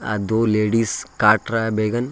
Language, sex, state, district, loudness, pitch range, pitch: Hindi, male, Jharkhand, Ranchi, -19 LUFS, 105-115 Hz, 110 Hz